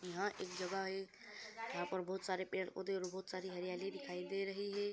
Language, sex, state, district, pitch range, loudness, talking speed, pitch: Hindi, female, Bihar, Saran, 185-195 Hz, -43 LUFS, 205 wpm, 190 Hz